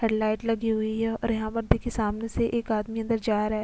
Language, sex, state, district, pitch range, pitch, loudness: Hindi, female, Chhattisgarh, Kabirdham, 215-230 Hz, 225 Hz, -27 LUFS